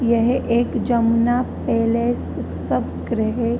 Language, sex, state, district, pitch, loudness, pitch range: Hindi, female, Uttar Pradesh, Jalaun, 235 Hz, -20 LUFS, 230-240 Hz